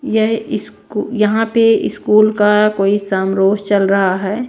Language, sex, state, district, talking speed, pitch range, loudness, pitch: Hindi, female, Bihar, West Champaran, 160 wpm, 195-220 Hz, -14 LUFS, 210 Hz